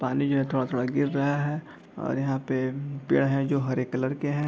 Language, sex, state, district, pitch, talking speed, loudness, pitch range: Hindi, male, Bihar, East Champaran, 135 Hz, 240 wpm, -27 LUFS, 130-140 Hz